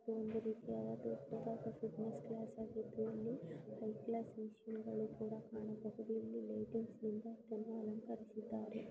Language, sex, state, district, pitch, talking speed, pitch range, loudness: Kannada, female, Karnataka, Gulbarga, 220 Hz, 95 wpm, 215-225 Hz, -46 LUFS